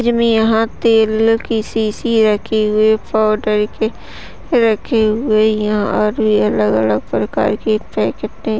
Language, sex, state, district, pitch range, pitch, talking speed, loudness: Hindi, female, Maharashtra, Sindhudurg, 215-225 Hz, 220 Hz, 140 wpm, -15 LUFS